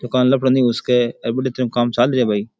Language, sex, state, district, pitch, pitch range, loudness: Rajasthani, male, Rajasthan, Churu, 125 Hz, 120-130 Hz, -18 LUFS